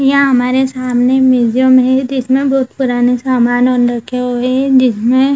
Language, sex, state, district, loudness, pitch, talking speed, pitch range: Hindi, female, Bihar, Jamui, -12 LUFS, 255 Hz, 170 wpm, 245-265 Hz